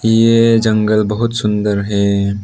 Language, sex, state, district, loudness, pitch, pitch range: Hindi, male, Arunachal Pradesh, Lower Dibang Valley, -14 LUFS, 105 Hz, 100-115 Hz